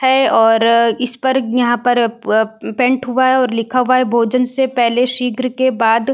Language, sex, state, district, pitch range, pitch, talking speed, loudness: Hindi, female, Uttar Pradesh, Varanasi, 230-255 Hz, 250 Hz, 185 wpm, -14 LUFS